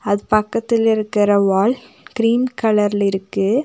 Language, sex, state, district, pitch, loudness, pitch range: Tamil, female, Tamil Nadu, Nilgiris, 215 Hz, -17 LUFS, 205-230 Hz